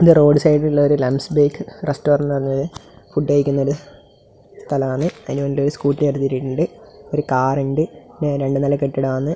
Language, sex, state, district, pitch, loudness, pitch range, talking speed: Malayalam, male, Kerala, Kasaragod, 145 Hz, -19 LUFS, 135-150 Hz, 145 wpm